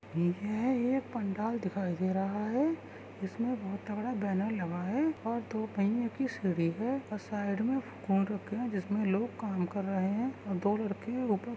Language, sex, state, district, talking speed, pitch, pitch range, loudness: Hindi, female, Maharashtra, Sindhudurg, 180 wpm, 210 Hz, 195-235 Hz, -33 LUFS